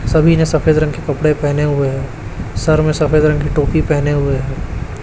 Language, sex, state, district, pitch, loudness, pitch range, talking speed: Hindi, male, Chhattisgarh, Raipur, 150 Hz, -15 LUFS, 135-155 Hz, 215 wpm